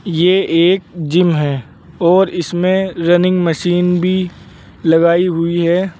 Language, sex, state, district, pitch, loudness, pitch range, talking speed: Hindi, male, Uttar Pradesh, Saharanpur, 175 Hz, -14 LUFS, 165-180 Hz, 120 wpm